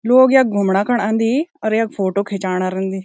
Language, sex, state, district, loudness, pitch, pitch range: Garhwali, female, Uttarakhand, Tehri Garhwal, -17 LUFS, 210 Hz, 190-245 Hz